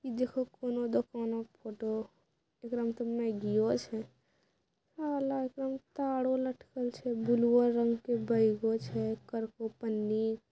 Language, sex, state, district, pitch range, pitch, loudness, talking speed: Maithili, female, Bihar, Bhagalpur, 225-255 Hz, 235 Hz, -33 LUFS, 130 wpm